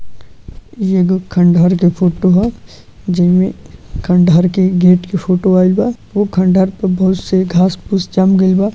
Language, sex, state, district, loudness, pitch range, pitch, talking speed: Bhojpuri, male, Uttar Pradesh, Gorakhpur, -13 LUFS, 180-190 Hz, 185 Hz, 145 wpm